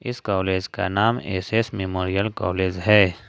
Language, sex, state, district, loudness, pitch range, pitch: Hindi, male, Jharkhand, Ranchi, -22 LUFS, 95-105 Hz, 95 Hz